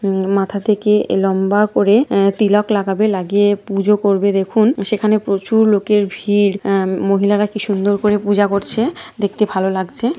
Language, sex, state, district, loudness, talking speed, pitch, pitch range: Bengali, female, West Bengal, North 24 Parganas, -16 LUFS, 155 wpm, 205 Hz, 195-210 Hz